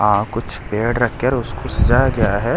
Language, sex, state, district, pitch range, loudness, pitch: Hindi, male, Delhi, New Delhi, 105-120 Hz, -18 LUFS, 115 Hz